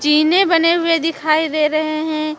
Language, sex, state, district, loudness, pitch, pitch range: Hindi, female, Chhattisgarh, Raipur, -15 LUFS, 310 Hz, 310-330 Hz